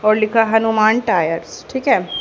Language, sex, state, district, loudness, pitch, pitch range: Hindi, female, Haryana, Charkhi Dadri, -16 LUFS, 220 Hz, 215-225 Hz